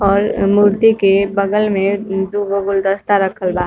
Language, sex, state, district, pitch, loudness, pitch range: Bhojpuri, female, Uttar Pradesh, Varanasi, 200 Hz, -15 LUFS, 195-205 Hz